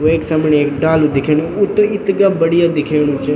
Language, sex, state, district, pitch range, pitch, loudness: Garhwali, male, Uttarakhand, Tehri Garhwal, 150-170 Hz, 160 Hz, -14 LUFS